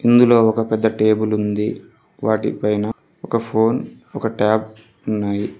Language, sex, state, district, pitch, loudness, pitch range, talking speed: Telugu, male, Telangana, Mahabubabad, 110 Hz, -19 LUFS, 105-115 Hz, 105 wpm